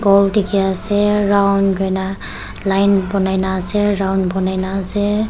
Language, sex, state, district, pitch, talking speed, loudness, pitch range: Nagamese, female, Nagaland, Kohima, 195 Hz, 160 wpm, -16 LUFS, 190-205 Hz